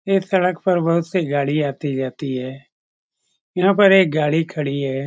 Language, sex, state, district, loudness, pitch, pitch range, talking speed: Hindi, male, Bihar, Saran, -19 LUFS, 155 Hz, 140-185 Hz, 180 wpm